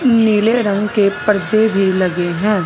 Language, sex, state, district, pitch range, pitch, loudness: Hindi, male, Punjab, Fazilka, 190-215 Hz, 210 Hz, -15 LUFS